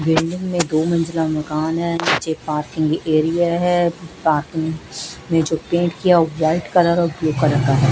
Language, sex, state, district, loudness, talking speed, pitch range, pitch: Hindi, female, Odisha, Malkangiri, -19 LUFS, 160 wpm, 155-170 Hz, 160 Hz